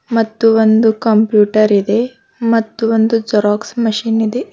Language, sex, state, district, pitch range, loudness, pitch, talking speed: Kannada, female, Karnataka, Bidar, 215-230 Hz, -13 LUFS, 225 Hz, 120 wpm